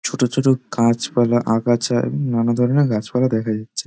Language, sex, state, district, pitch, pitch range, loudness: Bengali, male, West Bengal, Dakshin Dinajpur, 120 Hz, 115-130 Hz, -19 LUFS